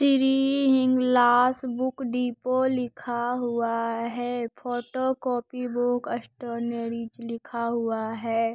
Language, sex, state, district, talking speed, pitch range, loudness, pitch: Hindi, female, Bihar, Lakhisarai, 90 wpm, 235-255 Hz, -26 LUFS, 245 Hz